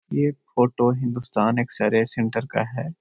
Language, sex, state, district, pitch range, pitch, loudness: Magahi, male, Bihar, Jahanabad, 115-130 Hz, 120 Hz, -22 LUFS